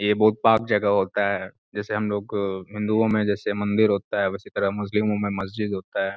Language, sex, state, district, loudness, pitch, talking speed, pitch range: Hindi, male, Uttar Pradesh, Gorakhpur, -24 LUFS, 105 Hz, 215 wpm, 100-105 Hz